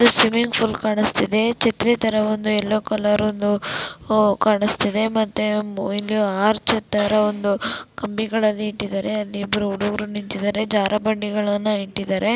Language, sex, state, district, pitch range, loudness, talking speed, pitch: Kannada, female, Karnataka, Dakshina Kannada, 205-215 Hz, -20 LUFS, 115 wpm, 210 Hz